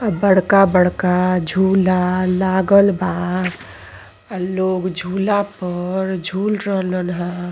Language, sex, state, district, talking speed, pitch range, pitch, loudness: Bhojpuri, female, Uttar Pradesh, Ghazipur, 105 wpm, 180-190 Hz, 185 Hz, -17 LUFS